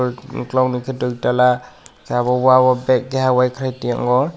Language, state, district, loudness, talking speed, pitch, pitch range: Kokborok, Tripura, West Tripura, -17 LUFS, 135 wpm, 125 Hz, 125-130 Hz